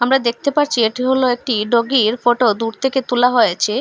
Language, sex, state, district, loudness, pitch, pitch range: Bengali, female, Assam, Hailakandi, -16 LUFS, 245 Hz, 235-265 Hz